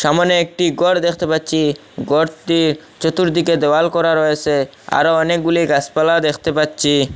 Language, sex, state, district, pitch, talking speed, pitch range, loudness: Bengali, male, Assam, Hailakandi, 160 Hz, 125 wpm, 150-170 Hz, -16 LUFS